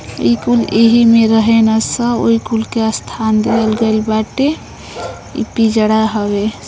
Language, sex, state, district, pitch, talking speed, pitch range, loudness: Bhojpuri, female, Uttar Pradesh, Deoria, 225 Hz, 150 wpm, 220-230 Hz, -13 LUFS